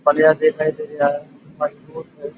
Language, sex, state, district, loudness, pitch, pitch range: Hindi, male, Uttar Pradesh, Budaun, -19 LUFS, 155 Hz, 145-175 Hz